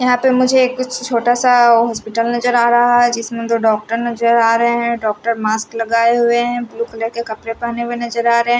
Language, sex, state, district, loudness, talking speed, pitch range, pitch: Hindi, female, Haryana, Rohtak, -15 LUFS, 215 wpm, 230-240 Hz, 235 Hz